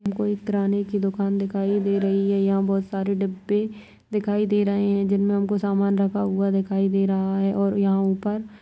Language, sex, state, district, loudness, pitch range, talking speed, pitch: Kumaoni, female, Uttarakhand, Tehri Garhwal, -23 LUFS, 195-205 Hz, 215 wpm, 200 Hz